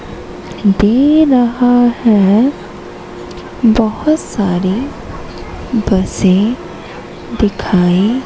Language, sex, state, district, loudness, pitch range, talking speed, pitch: Hindi, female, Madhya Pradesh, Katni, -12 LUFS, 195-245 Hz, 50 wpm, 220 Hz